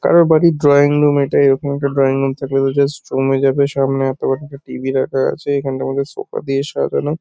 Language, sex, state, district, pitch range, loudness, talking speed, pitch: Bengali, male, West Bengal, North 24 Parganas, 135-145 Hz, -16 LUFS, 215 wpm, 140 Hz